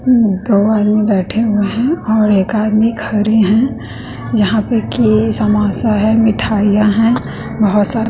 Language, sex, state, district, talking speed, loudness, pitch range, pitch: Hindi, female, Bihar, West Champaran, 140 wpm, -13 LUFS, 210-225 Hz, 215 Hz